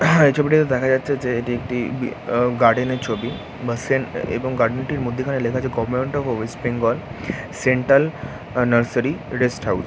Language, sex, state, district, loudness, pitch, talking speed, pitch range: Bengali, male, West Bengal, Jhargram, -21 LUFS, 125 Hz, 190 wpm, 120-135 Hz